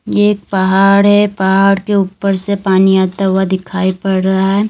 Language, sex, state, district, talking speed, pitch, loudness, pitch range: Hindi, female, Uttar Pradesh, Lalitpur, 190 wpm, 195 Hz, -12 LUFS, 190-200 Hz